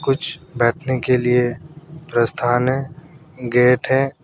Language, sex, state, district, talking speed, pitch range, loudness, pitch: Hindi, male, Uttar Pradesh, Saharanpur, 115 wpm, 125-155 Hz, -18 LUFS, 130 Hz